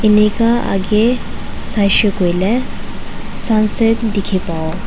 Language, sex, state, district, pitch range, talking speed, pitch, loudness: Nagamese, female, Nagaland, Dimapur, 195-225 Hz, 85 wpm, 210 Hz, -15 LUFS